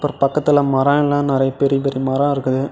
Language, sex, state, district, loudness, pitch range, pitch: Tamil, male, Tamil Nadu, Namakkal, -17 LUFS, 135-145 Hz, 140 Hz